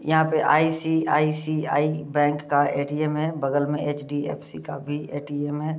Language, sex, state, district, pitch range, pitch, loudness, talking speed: Hindi, male, Bihar, East Champaran, 145-155 Hz, 150 Hz, -24 LUFS, 145 wpm